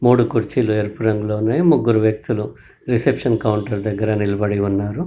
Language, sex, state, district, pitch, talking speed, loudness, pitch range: Telugu, male, Telangana, Karimnagar, 110 Hz, 140 wpm, -19 LUFS, 105-120 Hz